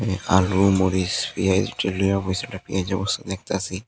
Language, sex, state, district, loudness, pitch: Bengali, male, Tripura, Unakoti, -22 LUFS, 95 Hz